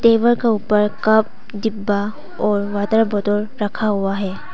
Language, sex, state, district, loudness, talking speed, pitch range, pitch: Hindi, female, Arunachal Pradesh, Papum Pare, -19 LUFS, 145 wpm, 205-220 Hz, 210 Hz